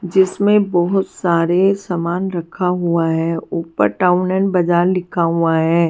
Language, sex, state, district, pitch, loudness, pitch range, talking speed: Hindi, female, Bihar, West Champaran, 175 Hz, -17 LUFS, 170-185 Hz, 140 wpm